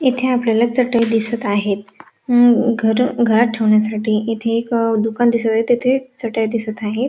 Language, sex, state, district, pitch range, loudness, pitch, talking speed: Marathi, female, Maharashtra, Dhule, 220-240 Hz, -17 LUFS, 230 Hz, 145 wpm